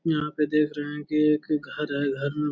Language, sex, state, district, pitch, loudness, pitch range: Hindi, male, Bihar, Jamui, 150 Hz, -26 LUFS, 145-150 Hz